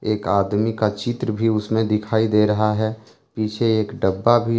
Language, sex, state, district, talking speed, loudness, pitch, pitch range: Hindi, male, Jharkhand, Deoghar, 185 wpm, -20 LUFS, 110 Hz, 105-115 Hz